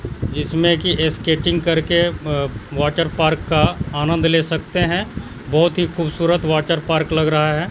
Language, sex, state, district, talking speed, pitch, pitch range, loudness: Hindi, male, Bihar, Katihar, 150 wpm, 160 Hz, 150-170 Hz, -18 LUFS